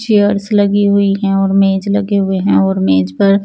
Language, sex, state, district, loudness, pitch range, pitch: Hindi, female, Chandigarh, Chandigarh, -13 LUFS, 195-205 Hz, 195 Hz